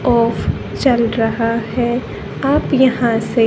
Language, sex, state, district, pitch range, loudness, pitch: Hindi, female, Haryana, Jhajjar, 230-245 Hz, -16 LUFS, 230 Hz